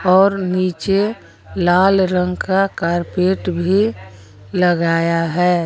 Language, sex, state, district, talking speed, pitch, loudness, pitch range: Hindi, female, Jharkhand, Garhwa, 95 wpm, 180 Hz, -17 LUFS, 170-190 Hz